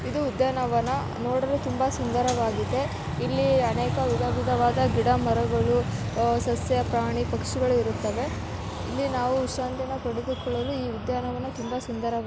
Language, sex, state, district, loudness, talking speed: Kannada, female, Karnataka, Dakshina Kannada, -26 LUFS, 115 wpm